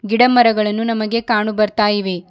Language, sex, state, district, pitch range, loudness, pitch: Kannada, female, Karnataka, Bidar, 210-230 Hz, -16 LUFS, 215 Hz